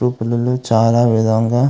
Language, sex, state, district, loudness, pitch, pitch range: Telugu, male, Andhra Pradesh, Anantapur, -15 LUFS, 120 Hz, 115-125 Hz